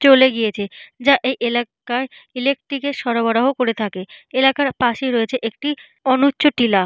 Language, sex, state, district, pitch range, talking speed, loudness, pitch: Bengali, female, Jharkhand, Jamtara, 230-270 Hz, 130 wpm, -18 LUFS, 255 Hz